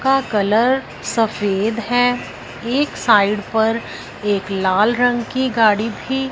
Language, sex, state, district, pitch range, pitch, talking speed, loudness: Hindi, female, Punjab, Fazilka, 210-245 Hz, 225 Hz, 125 wpm, -18 LUFS